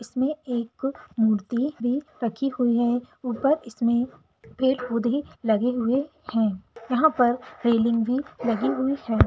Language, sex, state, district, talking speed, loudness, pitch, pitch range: Hindi, female, Bihar, Jamui, 130 wpm, -25 LUFS, 245 Hz, 235-265 Hz